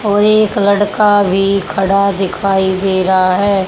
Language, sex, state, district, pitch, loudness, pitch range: Hindi, male, Haryana, Rohtak, 195 Hz, -12 LUFS, 190-205 Hz